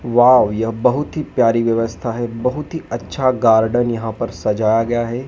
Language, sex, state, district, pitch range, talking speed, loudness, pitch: Hindi, male, Madhya Pradesh, Dhar, 115-125 Hz, 180 wpm, -17 LUFS, 120 Hz